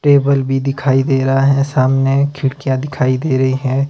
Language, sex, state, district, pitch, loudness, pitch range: Hindi, male, Himachal Pradesh, Shimla, 135 Hz, -15 LUFS, 130-140 Hz